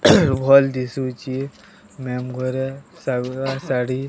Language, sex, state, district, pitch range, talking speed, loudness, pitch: Odia, male, Odisha, Sambalpur, 125-135 Hz, 90 wpm, -21 LUFS, 130 Hz